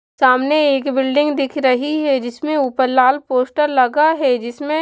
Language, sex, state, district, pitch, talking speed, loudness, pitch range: Hindi, female, Punjab, Kapurthala, 275 Hz, 175 wpm, -16 LUFS, 255-295 Hz